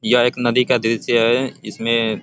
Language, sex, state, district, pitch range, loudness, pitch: Hindi, male, Uttar Pradesh, Ghazipur, 115-125 Hz, -18 LUFS, 120 Hz